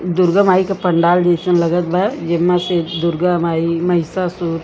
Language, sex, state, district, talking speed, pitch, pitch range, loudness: Bhojpuri, female, Uttar Pradesh, Gorakhpur, 180 wpm, 175 Hz, 170-180 Hz, -16 LUFS